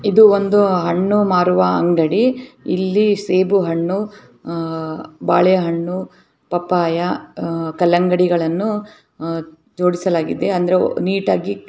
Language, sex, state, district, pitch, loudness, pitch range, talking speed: Kannada, female, Karnataka, Bellary, 180 Hz, -17 LUFS, 170-200 Hz, 85 wpm